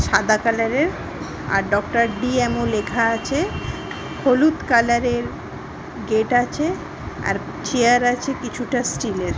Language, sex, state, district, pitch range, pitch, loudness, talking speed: Bengali, female, West Bengal, Malda, 230-255 Hz, 240 Hz, -20 LUFS, 120 wpm